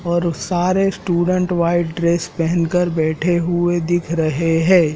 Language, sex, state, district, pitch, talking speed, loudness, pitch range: Hindi, male, Madhya Pradesh, Dhar, 175 Hz, 145 wpm, -18 LUFS, 165-175 Hz